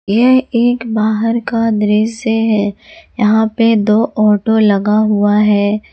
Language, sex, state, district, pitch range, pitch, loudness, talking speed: Hindi, female, Jharkhand, Garhwa, 210-230 Hz, 220 Hz, -13 LUFS, 130 wpm